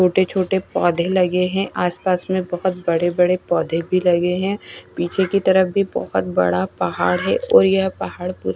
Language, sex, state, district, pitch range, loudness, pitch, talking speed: Hindi, female, Odisha, Nuapada, 175-190 Hz, -19 LUFS, 180 Hz, 175 wpm